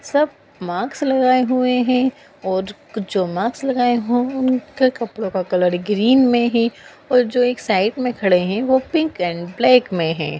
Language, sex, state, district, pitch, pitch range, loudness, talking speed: Hindi, female, Bihar, Gopalganj, 245 Hz, 195-255 Hz, -18 LUFS, 165 wpm